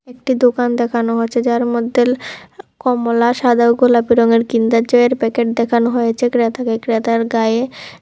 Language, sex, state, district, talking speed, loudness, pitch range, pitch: Bengali, female, Tripura, West Tripura, 140 wpm, -15 LUFS, 230-245 Hz, 235 Hz